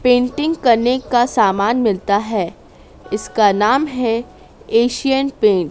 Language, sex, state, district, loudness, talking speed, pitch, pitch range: Hindi, female, Madhya Pradesh, Dhar, -16 LUFS, 125 wpm, 235 Hz, 210-255 Hz